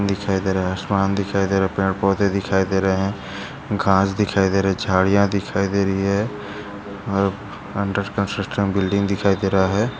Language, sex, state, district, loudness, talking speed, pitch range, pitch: Hindi, male, Maharashtra, Dhule, -20 LUFS, 200 wpm, 95-100 Hz, 100 Hz